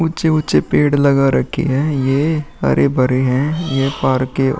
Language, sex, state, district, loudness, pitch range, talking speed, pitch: Hindi, male, Uttar Pradesh, Muzaffarnagar, -16 LUFS, 130-150 Hz, 155 wpm, 135 Hz